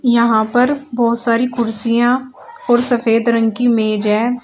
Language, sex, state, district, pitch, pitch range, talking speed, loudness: Hindi, female, Uttar Pradesh, Shamli, 235 Hz, 230-245 Hz, 150 wpm, -15 LUFS